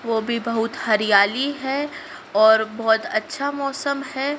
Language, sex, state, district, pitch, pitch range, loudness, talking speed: Hindi, female, Madhya Pradesh, Dhar, 235 Hz, 220-275 Hz, -21 LUFS, 135 wpm